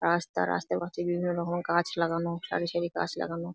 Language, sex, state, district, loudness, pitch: Bengali, female, West Bengal, Jalpaiguri, -30 LUFS, 170 Hz